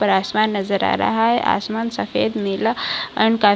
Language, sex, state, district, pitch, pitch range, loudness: Hindi, female, Bihar, Kishanganj, 215 Hz, 200-225 Hz, -19 LUFS